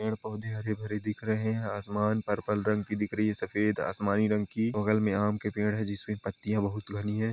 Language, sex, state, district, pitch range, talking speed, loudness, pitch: Hindi, male, Jharkhand, Sahebganj, 105-110 Hz, 230 wpm, -30 LUFS, 105 Hz